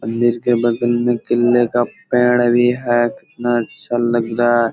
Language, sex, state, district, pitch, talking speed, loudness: Hindi, male, Bihar, Purnia, 120 Hz, 190 wpm, -17 LUFS